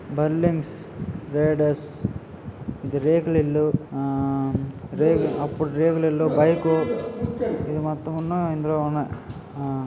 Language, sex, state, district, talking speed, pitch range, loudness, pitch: Telugu, male, Andhra Pradesh, Srikakulam, 90 wpm, 140-160 Hz, -24 LUFS, 150 Hz